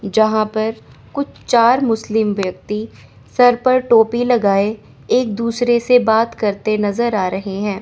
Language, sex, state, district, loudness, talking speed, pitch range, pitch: Hindi, female, Chandigarh, Chandigarh, -16 LUFS, 145 wpm, 210-240 Hz, 220 Hz